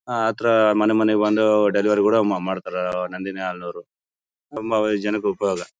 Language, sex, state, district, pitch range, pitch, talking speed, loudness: Kannada, male, Karnataka, Bellary, 90-110 Hz, 105 Hz, 145 wpm, -20 LUFS